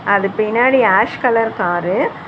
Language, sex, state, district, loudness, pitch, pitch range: Tamil, female, Tamil Nadu, Chennai, -15 LUFS, 215 Hz, 195-240 Hz